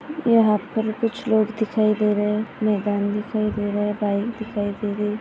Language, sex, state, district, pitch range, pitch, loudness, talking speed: Hindi, female, Maharashtra, Sindhudurg, 205-220 Hz, 215 Hz, -22 LUFS, 195 wpm